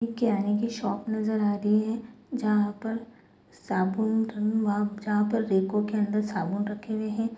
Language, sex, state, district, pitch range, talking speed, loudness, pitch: Hindi, female, Bihar, Sitamarhi, 205-225 Hz, 155 wpm, -28 LUFS, 215 Hz